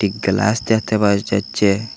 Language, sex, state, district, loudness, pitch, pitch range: Bengali, male, Assam, Hailakandi, -18 LUFS, 105 Hz, 100-110 Hz